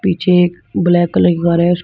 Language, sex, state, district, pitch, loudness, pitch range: Hindi, male, Uttar Pradesh, Shamli, 175 Hz, -13 LUFS, 175-180 Hz